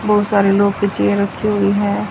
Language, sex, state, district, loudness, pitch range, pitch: Hindi, female, Haryana, Rohtak, -16 LUFS, 200-205 Hz, 200 Hz